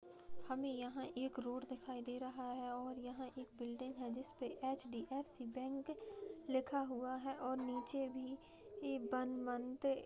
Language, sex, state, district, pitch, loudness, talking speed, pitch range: Hindi, female, Bihar, Begusarai, 255 Hz, -45 LUFS, 150 wpm, 250-270 Hz